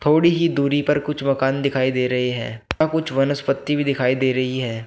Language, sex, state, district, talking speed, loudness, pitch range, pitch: Hindi, male, Uttar Pradesh, Shamli, 220 wpm, -20 LUFS, 130-145 Hz, 135 Hz